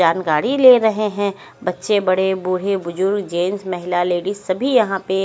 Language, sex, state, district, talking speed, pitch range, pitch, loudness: Hindi, female, Haryana, Charkhi Dadri, 160 wpm, 180-205 Hz, 190 Hz, -18 LUFS